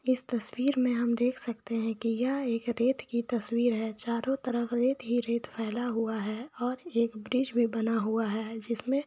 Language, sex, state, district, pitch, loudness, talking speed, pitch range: Hindi, female, Jharkhand, Jamtara, 235 Hz, -30 LUFS, 200 wpm, 225-250 Hz